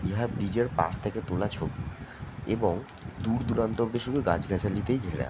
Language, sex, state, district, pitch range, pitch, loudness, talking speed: Bengali, male, West Bengal, Jhargram, 95-120 Hz, 110 Hz, -30 LUFS, 160 wpm